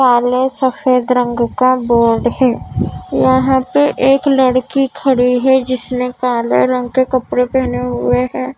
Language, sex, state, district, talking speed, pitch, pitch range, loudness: Hindi, female, Maharashtra, Mumbai Suburban, 140 wpm, 255 Hz, 240-260 Hz, -14 LUFS